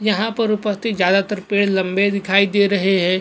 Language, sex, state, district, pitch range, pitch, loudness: Hindi, male, Goa, North and South Goa, 195-210 Hz, 200 Hz, -17 LUFS